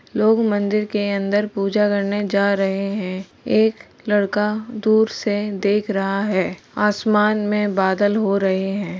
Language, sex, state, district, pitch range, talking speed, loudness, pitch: Hindi, female, Uttar Pradesh, Varanasi, 200-210 Hz, 145 wpm, -20 LUFS, 205 Hz